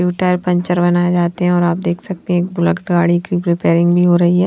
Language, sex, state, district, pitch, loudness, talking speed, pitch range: Hindi, female, Haryana, Jhajjar, 175 Hz, -15 LUFS, 255 wpm, 175-180 Hz